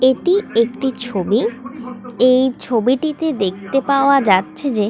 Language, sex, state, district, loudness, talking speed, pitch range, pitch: Bengali, female, West Bengal, Kolkata, -17 LUFS, 120 wpm, 230-275 Hz, 255 Hz